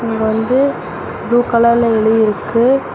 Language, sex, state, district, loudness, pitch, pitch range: Tamil, female, Tamil Nadu, Namakkal, -14 LUFS, 235 Hz, 220-240 Hz